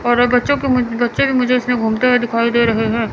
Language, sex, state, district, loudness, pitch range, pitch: Hindi, female, Chandigarh, Chandigarh, -15 LUFS, 230-250 Hz, 245 Hz